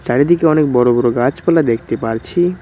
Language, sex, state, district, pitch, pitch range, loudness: Bengali, male, West Bengal, Cooch Behar, 125 Hz, 120-165 Hz, -14 LUFS